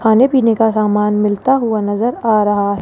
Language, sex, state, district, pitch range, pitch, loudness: Hindi, female, Rajasthan, Jaipur, 210-230 Hz, 215 Hz, -14 LUFS